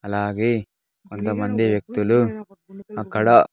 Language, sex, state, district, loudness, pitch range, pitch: Telugu, male, Andhra Pradesh, Sri Satya Sai, -21 LUFS, 105-120 Hz, 110 Hz